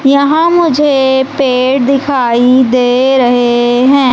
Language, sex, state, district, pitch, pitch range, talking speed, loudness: Hindi, female, Madhya Pradesh, Umaria, 265 Hz, 250-280 Hz, 100 wpm, -9 LUFS